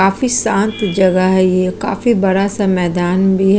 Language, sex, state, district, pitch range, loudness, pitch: Hindi, female, Chhattisgarh, Kabirdham, 185-205 Hz, -14 LUFS, 195 Hz